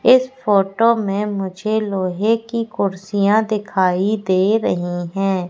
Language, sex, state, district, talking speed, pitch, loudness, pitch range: Hindi, female, Madhya Pradesh, Katni, 120 wpm, 200 Hz, -18 LUFS, 190-220 Hz